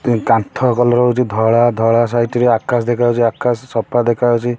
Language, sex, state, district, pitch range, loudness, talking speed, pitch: Odia, male, Odisha, Khordha, 115-120 Hz, -15 LUFS, 195 wpm, 120 Hz